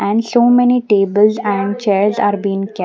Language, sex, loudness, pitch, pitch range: English, female, -14 LUFS, 205 Hz, 200-230 Hz